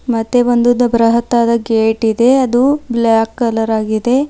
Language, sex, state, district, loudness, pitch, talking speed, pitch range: Kannada, female, Karnataka, Bidar, -13 LUFS, 235 Hz, 125 wpm, 225-245 Hz